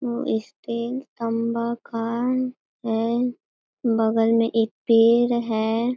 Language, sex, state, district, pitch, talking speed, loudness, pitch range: Hindi, female, Bihar, East Champaran, 230 Hz, 100 wpm, -23 LUFS, 225-240 Hz